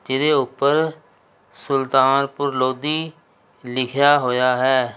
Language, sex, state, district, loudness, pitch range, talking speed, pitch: Punjabi, male, Punjab, Kapurthala, -19 LUFS, 125-145 Hz, 85 wpm, 135 Hz